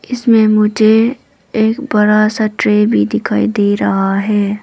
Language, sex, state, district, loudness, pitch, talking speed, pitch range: Hindi, female, Arunachal Pradesh, Papum Pare, -13 LUFS, 210 Hz, 140 wpm, 205-220 Hz